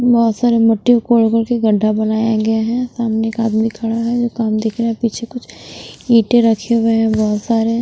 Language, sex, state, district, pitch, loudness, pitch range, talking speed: Hindi, female, Bihar, West Champaran, 230 Hz, -15 LUFS, 220-235 Hz, 215 wpm